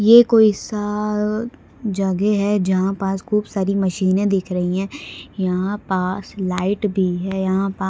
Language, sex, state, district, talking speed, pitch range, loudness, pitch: Hindi, female, Maharashtra, Solapur, 150 wpm, 190-210 Hz, -20 LUFS, 195 Hz